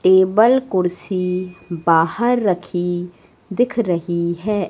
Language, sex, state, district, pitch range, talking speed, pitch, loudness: Hindi, female, Madhya Pradesh, Katni, 175-210 Hz, 90 wpm, 180 Hz, -18 LUFS